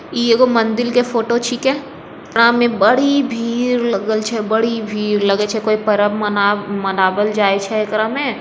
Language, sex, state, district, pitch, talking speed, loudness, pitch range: Angika, female, Bihar, Begusarai, 220 Hz, 170 wpm, -16 LUFS, 210-240 Hz